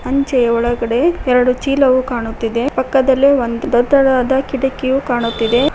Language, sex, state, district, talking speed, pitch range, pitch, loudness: Kannada, female, Karnataka, Koppal, 105 wpm, 240-270 Hz, 260 Hz, -15 LUFS